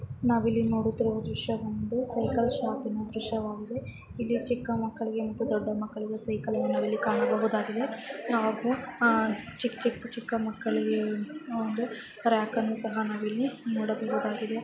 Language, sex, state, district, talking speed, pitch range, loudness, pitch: Kannada, female, Karnataka, Chamarajanagar, 105 wpm, 220-235 Hz, -30 LUFS, 225 Hz